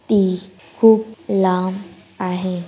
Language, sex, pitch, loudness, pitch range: Marathi, female, 185 Hz, -18 LUFS, 185-200 Hz